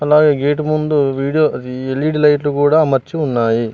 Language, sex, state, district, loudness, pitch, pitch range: Telugu, male, Telangana, Mahabubabad, -15 LUFS, 145 Hz, 135-150 Hz